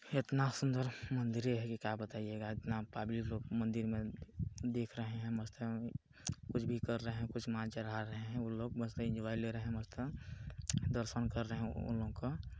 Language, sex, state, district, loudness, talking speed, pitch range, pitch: Hindi, male, Chhattisgarh, Balrampur, -41 LUFS, 195 wpm, 110-120 Hz, 115 Hz